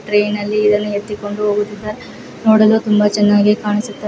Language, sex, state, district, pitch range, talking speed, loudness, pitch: Kannada, female, Karnataka, Raichur, 205-210 Hz, 130 wpm, -15 LUFS, 210 Hz